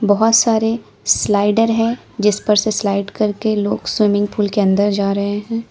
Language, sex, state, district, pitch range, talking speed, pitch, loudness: Hindi, female, Uttar Pradesh, Lalitpur, 205-225 Hz, 180 wpm, 210 Hz, -16 LUFS